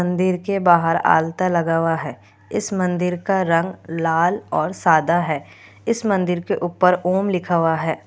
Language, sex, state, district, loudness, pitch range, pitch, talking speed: Hindi, female, Bihar, Kishanganj, -19 LUFS, 165-185 Hz, 175 Hz, 170 wpm